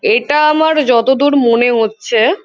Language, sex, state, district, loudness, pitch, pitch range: Bengali, female, West Bengal, Kolkata, -12 LUFS, 275 Hz, 235-305 Hz